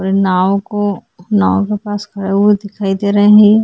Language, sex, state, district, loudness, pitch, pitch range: Hindi, female, Chhattisgarh, Korba, -13 LUFS, 205 Hz, 195-205 Hz